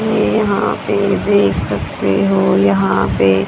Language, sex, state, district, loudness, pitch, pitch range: Hindi, female, Haryana, Rohtak, -15 LUFS, 95 Hz, 95-100 Hz